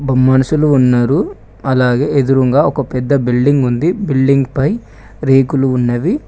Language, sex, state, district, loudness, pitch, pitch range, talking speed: Telugu, male, Telangana, Mahabubabad, -13 LUFS, 135 Hz, 125-140 Hz, 115 wpm